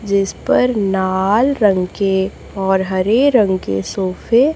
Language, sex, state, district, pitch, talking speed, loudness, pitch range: Hindi, female, Chhattisgarh, Raipur, 195 Hz, 145 wpm, -16 LUFS, 190-220 Hz